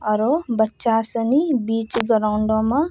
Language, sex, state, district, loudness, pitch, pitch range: Angika, female, Bihar, Bhagalpur, -20 LUFS, 225 Hz, 220-245 Hz